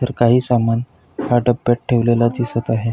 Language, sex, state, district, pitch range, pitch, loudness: Marathi, male, Maharashtra, Pune, 115-120 Hz, 120 Hz, -17 LUFS